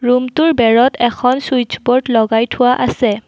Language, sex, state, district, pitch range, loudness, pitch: Assamese, female, Assam, Kamrup Metropolitan, 235-255 Hz, -13 LUFS, 245 Hz